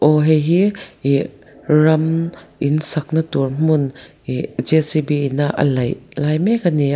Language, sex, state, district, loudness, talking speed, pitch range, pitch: Mizo, female, Mizoram, Aizawl, -17 LUFS, 165 wpm, 140-160 Hz, 150 Hz